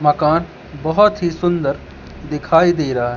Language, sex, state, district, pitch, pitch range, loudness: Hindi, male, Madhya Pradesh, Katni, 155 Hz, 135-170 Hz, -17 LUFS